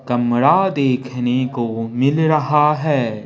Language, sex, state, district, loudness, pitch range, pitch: Hindi, male, Bihar, Patna, -17 LUFS, 120-150 Hz, 130 Hz